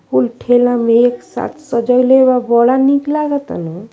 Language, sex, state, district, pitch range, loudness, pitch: Bhojpuri, female, Uttar Pradesh, Ghazipur, 235-265 Hz, -13 LUFS, 245 Hz